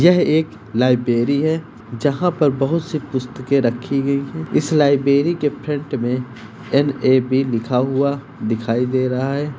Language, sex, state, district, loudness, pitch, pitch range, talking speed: Hindi, male, Bihar, Gopalganj, -19 LUFS, 135 Hz, 125-145 Hz, 165 wpm